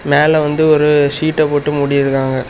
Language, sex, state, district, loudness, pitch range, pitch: Tamil, male, Tamil Nadu, Kanyakumari, -13 LUFS, 140-155 Hz, 145 Hz